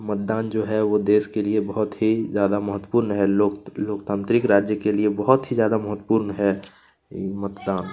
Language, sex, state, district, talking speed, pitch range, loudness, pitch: Hindi, male, Chhattisgarh, Kabirdham, 175 wpm, 100-110 Hz, -22 LUFS, 105 Hz